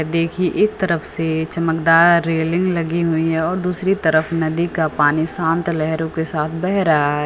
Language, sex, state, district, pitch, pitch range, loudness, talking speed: Hindi, female, Uttar Pradesh, Lucknow, 165 Hz, 160-170 Hz, -18 LUFS, 180 wpm